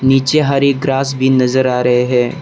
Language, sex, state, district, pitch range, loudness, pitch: Hindi, male, Arunachal Pradesh, Lower Dibang Valley, 125-140 Hz, -13 LUFS, 130 Hz